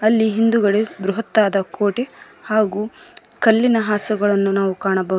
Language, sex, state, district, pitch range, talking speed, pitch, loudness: Kannada, female, Karnataka, Koppal, 200-225 Hz, 90 wpm, 215 Hz, -18 LUFS